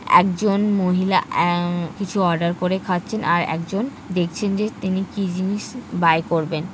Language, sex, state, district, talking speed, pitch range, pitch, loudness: Bengali, female, West Bengal, Kolkata, 150 wpm, 175-200 Hz, 185 Hz, -21 LUFS